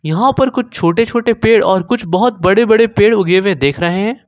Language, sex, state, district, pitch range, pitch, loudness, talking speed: Hindi, male, Jharkhand, Ranchi, 185-235 Hz, 220 Hz, -12 LUFS, 240 wpm